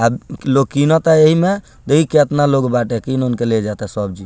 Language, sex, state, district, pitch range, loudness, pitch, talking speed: Bhojpuri, male, Bihar, Muzaffarpur, 115-150 Hz, -15 LUFS, 135 Hz, 195 wpm